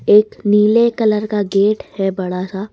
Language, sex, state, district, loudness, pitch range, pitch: Hindi, female, Rajasthan, Jaipur, -16 LUFS, 195-215 Hz, 210 Hz